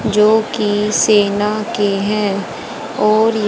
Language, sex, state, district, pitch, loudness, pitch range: Hindi, female, Haryana, Jhajjar, 210 Hz, -15 LUFS, 205-215 Hz